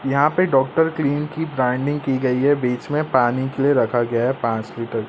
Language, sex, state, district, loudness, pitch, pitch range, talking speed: Hindi, male, Madhya Pradesh, Katni, -20 LUFS, 135 Hz, 125-145 Hz, 225 wpm